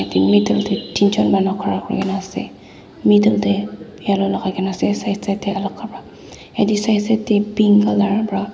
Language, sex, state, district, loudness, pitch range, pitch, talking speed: Nagamese, female, Nagaland, Dimapur, -18 LUFS, 190-205 Hz, 195 Hz, 190 wpm